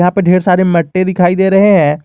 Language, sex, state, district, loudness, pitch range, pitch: Hindi, male, Jharkhand, Garhwa, -10 LUFS, 175-190 Hz, 185 Hz